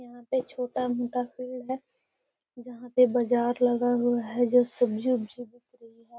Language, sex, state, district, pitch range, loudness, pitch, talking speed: Magahi, female, Bihar, Gaya, 240-250 Hz, -27 LUFS, 245 Hz, 175 wpm